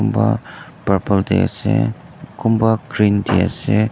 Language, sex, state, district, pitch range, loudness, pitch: Nagamese, male, Nagaland, Dimapur, 100-115 Hz, -18 LUFS, 110 Hz